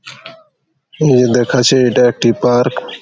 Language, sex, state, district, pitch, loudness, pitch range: Bengali, male, West Bengal, Malda, 125 Hz, -12 LUFS, 120-155 Hz